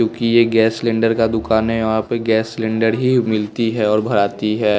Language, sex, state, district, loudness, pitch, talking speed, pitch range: Hindi, male, Bihar, West Champaran, -17 LUFS, 110 Hz, 215 wpm, 110-115 Hz